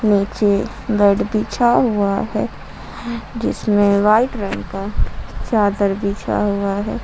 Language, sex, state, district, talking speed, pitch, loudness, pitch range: Hindi, female, Jharkhand, Ranchi, 110 wpm, 205 Hz, -18 LUFS, 200-215 Hz